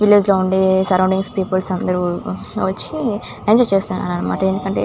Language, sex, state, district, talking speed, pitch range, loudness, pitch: Telugu, female, Andhra Pradesh, Chittoor, 150 wpm, 185-205 Hz, -17 LUFS, 190 Hz